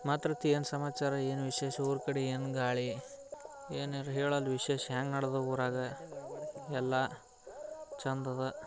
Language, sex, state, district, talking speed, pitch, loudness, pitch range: Kannada, male, Karnataka, Bijapur, 110 wpm, 140 Hz, -35 LUFS, 130-145 Hz